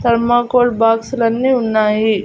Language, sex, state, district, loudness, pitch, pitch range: Telugu, female, Andhra Pradesh, Annamaya, -14 LUFS, 230 Hz, 225-245 Hz